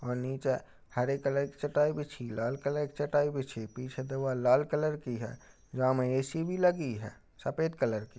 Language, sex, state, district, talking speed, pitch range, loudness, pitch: Hindi, male, Uttar Pradesh, Jalaun, 205 wpm, 125-145 Hz, -32 LUFS, 135 Hz